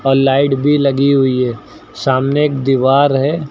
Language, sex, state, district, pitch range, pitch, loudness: Hindi, male, Uttar Pradesh, Lucknow, 135-140 Hz, 135 Hz, -13 LUFS